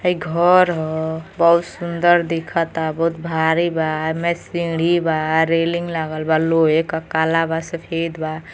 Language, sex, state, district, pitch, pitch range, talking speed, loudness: Bhojpuri, female, Uttar Pradesh, Gorakhpur, 165 Hz, 160-170 Hz, 145 wpm, -19 LUFS